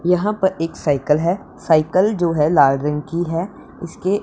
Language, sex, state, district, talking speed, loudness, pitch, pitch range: Hindi, female, Punjab, Pathankot, 185 wpm, -18 LUFS, 170 Hz, 155-185 Hz